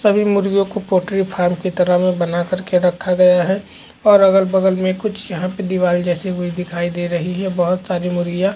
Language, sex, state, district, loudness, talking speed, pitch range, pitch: Chhattisgarhi, male, Chhattisgarh, Jashpur, -17 LUFS, 210 wpm, 180-195 Hz, 185 Hz